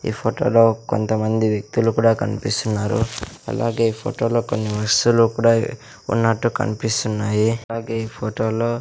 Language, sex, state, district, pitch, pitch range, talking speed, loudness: Telugu, male, Andhra Pradesh, Sri Satya Sai, 115 Hz, 110-115 Hz, 155 wpm, -20 LUFS